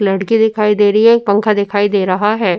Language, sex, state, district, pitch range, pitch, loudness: Hindi, female, Uttar Pradesh, Jyotiba Phule Nagar, 200-220 Hz, 205 Hz, -12 LUFS